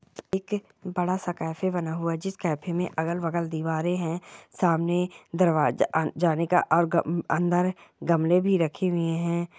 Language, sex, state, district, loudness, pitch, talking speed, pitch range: Hindi, female, Chhattisgarh, Bilaspur, -26 LUFS, 170 Hz, 170 wpm, 165-180 Hz